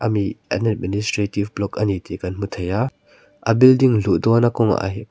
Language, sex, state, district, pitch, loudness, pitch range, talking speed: Mizo, male, Mizoram, Aizawl, 105 Hz, -19 LUFS, 100-115 Hz, 175 wpm